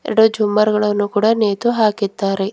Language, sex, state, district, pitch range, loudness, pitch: Kannada, female, Karnataka, Bidar, 205-220 Hz, -16 LUFS, 210 Hz